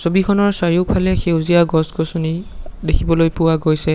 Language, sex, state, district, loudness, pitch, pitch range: Assamese, male, Assam, Sonitpur, -17 LUFS, 165 Hz, 160-175 Hz